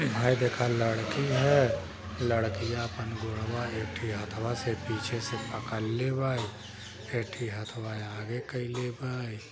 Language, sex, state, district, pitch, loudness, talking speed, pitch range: Bhojpuri, male, Uttar Pradesh, Gorakhpur, 115 Hz, -31 LUFS, 120 wpm, 110-120 Hz